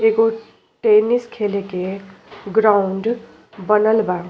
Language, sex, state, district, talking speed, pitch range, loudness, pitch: Bhojpuri, female, Uttar Pradesh, Ghazipur, 100 wpm, 195-225 Hz, -18 LUFS, 210 Hz